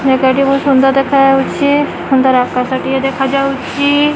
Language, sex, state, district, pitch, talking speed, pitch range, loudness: Odia, female, Odisha, Khordha, 270 Hz, 115 wpm, 265-275 Hz, -12 LUFS